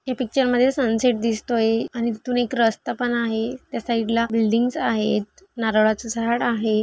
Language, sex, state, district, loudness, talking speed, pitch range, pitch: Marathi, female, Maharashtra, Dhule, -22 LUFS, 160 wpm, 225-245 Hz, 230 Hz